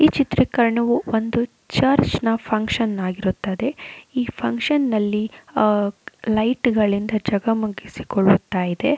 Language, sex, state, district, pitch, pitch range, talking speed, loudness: Kannada, female, Karnataka, Raichur, 220 Hz, 205-235 Hz, 100 wpm, -21 LUFS